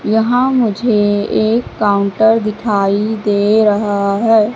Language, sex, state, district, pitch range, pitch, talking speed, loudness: Hindi, female, Madhya Pradesh, Katni, 205-225 Hz, 215 Hz, 105 wpm, -14 LUFS